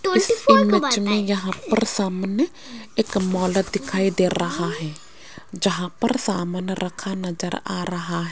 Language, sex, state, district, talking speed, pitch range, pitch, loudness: Hindi, female, Rajasthan, Jaipur, 145 wpm, 180-210 Hz, 190 Hz, -22 LUFS